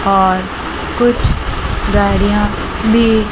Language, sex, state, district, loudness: Hindi, female, Chandigarh, Chandigarh, -14 LUFS